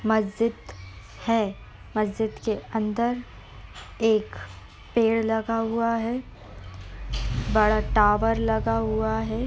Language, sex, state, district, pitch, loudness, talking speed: Hindi, female, Uttar Pradesh, Etah, 215 Hz, -25 LUFS, 110 wpm